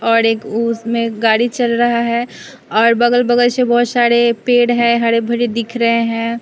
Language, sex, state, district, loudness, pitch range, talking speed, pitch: Hindi, female, Bihar, West Champaran, -14 LUFS, 230-240 Hz, 175 wpm, 235 Hz